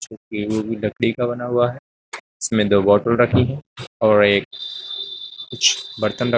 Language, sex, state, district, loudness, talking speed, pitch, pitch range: Hindi, male, Uttar Pradesh, Jyotiba Phule Nagar, -19 LUFS, 150 wpm, 115 Hz, 105-125 Hz